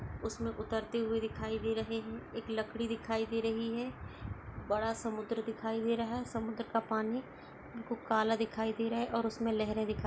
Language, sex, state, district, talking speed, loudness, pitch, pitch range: Hindi, female, Uttar Pradesh, Etah, 190 wpm, -36 LUFS, 225 Hz, 220-230 Hz